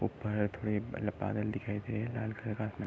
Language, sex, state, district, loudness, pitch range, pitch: Hindi, male, Uttar Pradesh, Gorakhpur, -36 LUFS, 105-110 Hz, 105 Hz